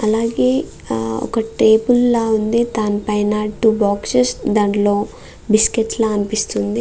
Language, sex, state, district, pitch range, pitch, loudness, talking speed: Telugu, female, Andhra Pradesh, Guntur, 205-225 Hz, 215 Hz, -17 LUFS, 125 wpm